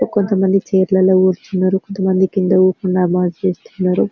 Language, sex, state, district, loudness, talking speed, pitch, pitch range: Telugu, female, Telangana, Karimnagar, -15 LUFS, 145 wpm, 190 Hz, 185-190 Hz